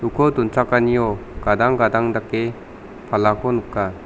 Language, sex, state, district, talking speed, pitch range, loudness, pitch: Garo, male, Meghalaya, South Garo Hills, 105 wpm, 105-120 Hz, -19 LUFS, 115 Hz